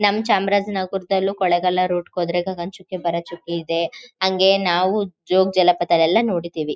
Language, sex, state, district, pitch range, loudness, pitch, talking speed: Kannada, female, Karnataka, Chamarajanagar, 175-195 Hz, -20 LUFS, 185 Hz, 125 wpm